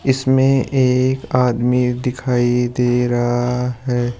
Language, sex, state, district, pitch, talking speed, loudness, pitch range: Hindi, male, Rajasthan, Jaipur, 125 Hz, 100 wpm, -17 LUFS, 120-130 Hz